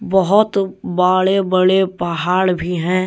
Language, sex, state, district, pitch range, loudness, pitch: Hindi, male, Jharkhand, Deoghar, 180-195 Hz, -16 LUFS, 185 Hz